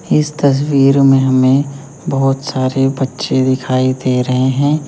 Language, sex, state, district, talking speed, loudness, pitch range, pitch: Hindi, male, Uttar Pradesh, Lalitpur, 135 wpm, -14 LUFS, 130-140 Hz, 135 Hz